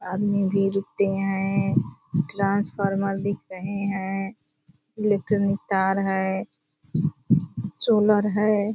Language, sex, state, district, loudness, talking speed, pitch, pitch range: Hindi, female, Bihar, Purnia, -24 LUFS, 90 wpm, 195 Hz, 190-200 Hz